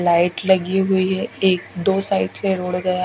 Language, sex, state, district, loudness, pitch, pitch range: Hindi, female, Odisha, Khordha, -19 LUFS, 185 Hz, 180-190 Hz